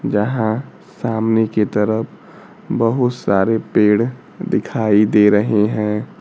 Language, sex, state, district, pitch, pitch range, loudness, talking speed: Hindi, male, Bihar, Kaimur, 110 Hz, 105-115 Hz, -17 LUFS, 105 wpm